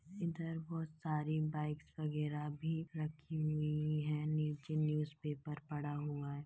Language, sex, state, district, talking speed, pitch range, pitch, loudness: Hindi, female, Uttar Pradesh, Deoria, 140 wpm, 150-155 Hz, 150 Hz, -40 LUFS